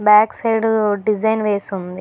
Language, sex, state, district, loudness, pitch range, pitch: Telugu, female, Telangana, Hyderabad, -17 LUFS, 205-220 Hz, 210 Hz